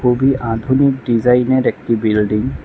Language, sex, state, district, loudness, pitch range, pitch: Bengali, male, Tripura, West Tripura, -15 LUFS, 115-130 Hz, 125 Hz